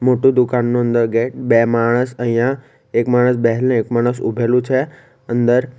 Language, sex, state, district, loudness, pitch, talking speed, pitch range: Gujarati, male, Gujarat, Valsad, -16 LUFS, 125 Hz, 155 wpm, 120-125 Hz